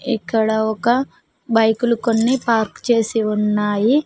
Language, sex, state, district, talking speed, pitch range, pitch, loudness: Telugu, female, Telangana, Mahabubabad, 105 wpm, 220-240 Hz, 225 Hz, -18 LUFS